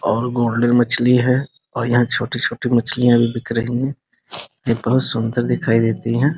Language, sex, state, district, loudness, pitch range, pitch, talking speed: Hindi, male, Bihar, Muzaffarpur, -17 LUFS, 115-125 Hz, 120 Hz, 190 wpm